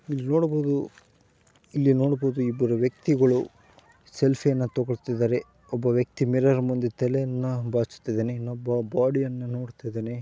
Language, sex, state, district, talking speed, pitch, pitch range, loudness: Kannada, male, Karnataka, Gulbarga, 110 wpm, 125 Hz, 120-135 Hz, -25 LUFS